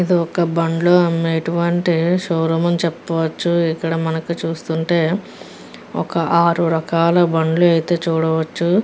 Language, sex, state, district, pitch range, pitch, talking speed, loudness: Telugu, female, Andhra Pradesh, Guntur, 165-170 Hz, 165 Hz, 115 wpm, -17 LUFS